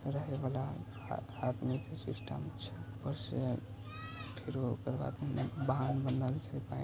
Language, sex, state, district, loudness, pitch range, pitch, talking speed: Hindi, male, Bihar, Samastipur, -39 LUFS, 115-135 Hz, 130 Hz, 130 wpm